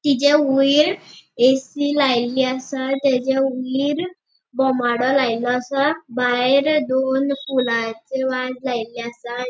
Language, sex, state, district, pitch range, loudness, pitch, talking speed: Konkani, female, Goa, North and South Goa, 250-275 Hz, -19 LUFS, 265 Hz, 100 wpm